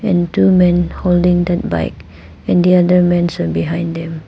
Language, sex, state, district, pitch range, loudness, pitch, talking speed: English, female, Arunachal Pradesh, Papum Pare, 110-180 Hz, -14 LUFS, 175 Hz, 180 wpm